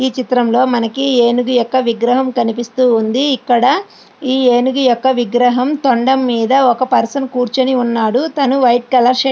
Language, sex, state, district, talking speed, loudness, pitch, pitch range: Telugu, female, Andhra Pradesh, Srikakulam, 150 wpm, -13 LUFS, 250 Hz, 240-260 Hz